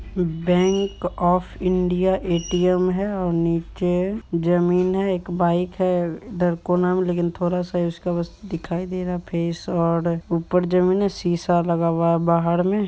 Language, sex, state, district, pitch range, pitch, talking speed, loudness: Hindi, male, Bihar, Supaul, 170-185 Hz, 180 Hz, 150 wpm, -22 LUFS